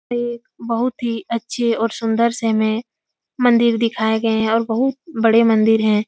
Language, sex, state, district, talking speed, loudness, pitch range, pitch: Hindi, female, Uttar Pradesh, Etah, 165 wpm, -18 LUFS, 225-240 Hz, 230 Hz